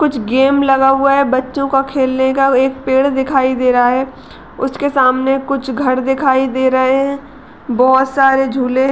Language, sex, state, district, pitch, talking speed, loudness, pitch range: Hindi, female, Uttar Pradesh, Gorakhpur, 265 Hz, 180 wpm, -13 LUFS, 260-275 Hz